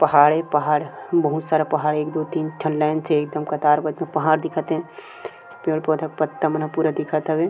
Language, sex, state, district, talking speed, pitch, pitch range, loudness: Chhattisgarhi, male, Chhattisgarh, Sukma, 210 wpm, 155 Hz, 150-155 Hz, -21 LUFS